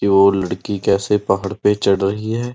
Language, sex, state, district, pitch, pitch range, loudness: Hindi, male, Uttar Pradesh, Muzaffarnagar, 100 Hz, 100-105 Hz, -17 LUFS